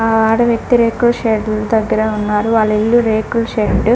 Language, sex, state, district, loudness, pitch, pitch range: Telugu, female, Andhra Pradesh, Krishna, -14 LUFS, 220 Hz, 215-230 Hz